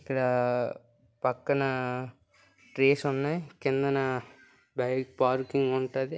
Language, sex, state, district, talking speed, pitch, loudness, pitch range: Telugu, male, Andhra Pradesh, Srikakulam, 80 wpm, 130 Hz, -29 LUFS, 125-135 Hz